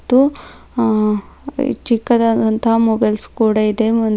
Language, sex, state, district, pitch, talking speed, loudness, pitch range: Kannada, female, Karnataka, Bidar, 225 Hz, 100 wpm, -16 LUFS, 215-240 Hz